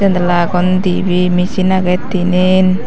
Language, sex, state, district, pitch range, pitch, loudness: Chakma, female, Tripura, Dhalai, 180-185 Hz, 180 Hz, -13 LUFS